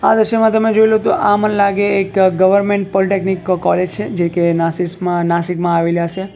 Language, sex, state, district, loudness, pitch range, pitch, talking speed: Gujarati, male, Gujarat, Valsad, -15 LUFS, 175-205 Hz, 190 Hz, 170 wpm